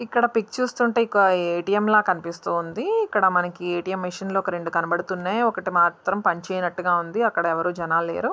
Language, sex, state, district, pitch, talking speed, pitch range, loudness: Telugu, female, Andhra Pradesh, Srikakulam, 185 Hz, 165 wpm, 175-215 Hz, -23 LUFS